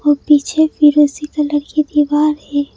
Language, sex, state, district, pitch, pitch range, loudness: Hindi, female, Madhya Pradesh, Bhopal, 295 Hz, 295-300 Hz, -14 LUFS